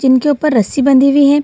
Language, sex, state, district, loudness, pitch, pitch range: Hindi, female, Bihar, Gaya, -11 LUFS, 275 Hz, 265-290 Hz